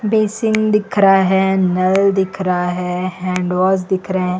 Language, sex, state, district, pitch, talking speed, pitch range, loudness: Hindi, female, Chhattisgarh, Raipur, 190 Hz, 175 wpm, 185-195 Hz, -16 LUFS